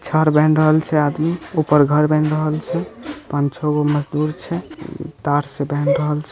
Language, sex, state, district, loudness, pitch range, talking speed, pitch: Hindi, male, Bihar, Samastipur, -18 LUFS, 150-160 Hz, 170 wpm, 155 Hz